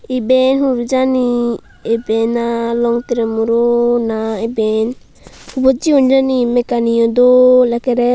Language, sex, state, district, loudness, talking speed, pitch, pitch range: Chakma, female, Tripura, Unakoti, -14 LUFS, 110 wpm, 240 Hz, 230-255 Hz